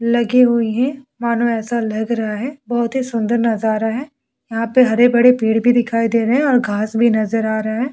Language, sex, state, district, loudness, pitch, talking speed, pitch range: Hindi, female, Bihar, Vaishali, -16 LUFS, 235 Hz, 225 wpm, 225-245 Hz